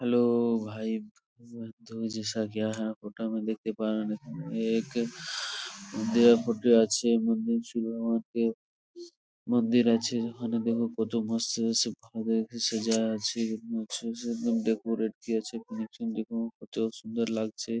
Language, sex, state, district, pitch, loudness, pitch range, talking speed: Bengali, male, West Bengal, Purulia, 115 Hz, -29 LUFS, 110-115 Hz, 110 wpm